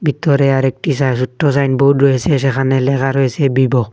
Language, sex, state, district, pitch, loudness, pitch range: Bengali, male, Assam, Hailakandi, 135 Hz, -14 LUFS, 130-140 Hz